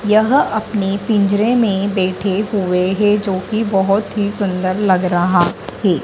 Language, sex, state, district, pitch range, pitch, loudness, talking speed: Hindi, female, Madhya Pradesh, Dhar, 185-210 Hz, 200 Hz, -16 LUFS, 150 wpm